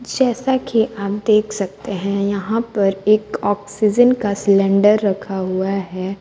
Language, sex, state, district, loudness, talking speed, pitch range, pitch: Hindi, female, Bihar, Kaimur, -18 LUFS, 145 wpm, 195-220 Hz, 205 Hz